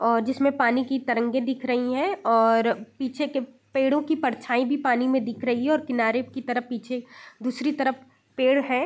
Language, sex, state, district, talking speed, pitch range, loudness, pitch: Hindi, female, Bihar, East Champaran, 195 wpm, 245-270 Hz, -24 LUFS, 255 Hz